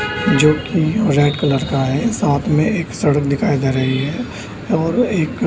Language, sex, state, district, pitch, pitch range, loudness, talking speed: Hindi, male, Bihar, Samastipur, 145 Hz, 135-160 Hz, -17 LUFS, 185 wpm